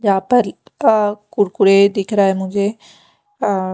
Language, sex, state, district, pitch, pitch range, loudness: Hindi, female, Punjab, Pathankot, 200 Hz, 195-210 Hz, -16 LUFS